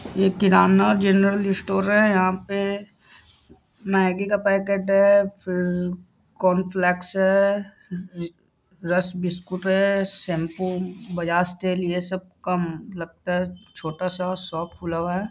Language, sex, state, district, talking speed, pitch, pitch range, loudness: Hindi, male, Bihar, Muzaffarpur, 125 wpm, 185 Hz, 180-195 Hz, -22 LUFS